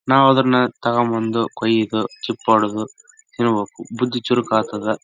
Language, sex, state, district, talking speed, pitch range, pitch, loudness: Kannada, male, Karnataka, Raichur, 95 wpm, 110-125 Hz, 115 Hz, -19 LUFS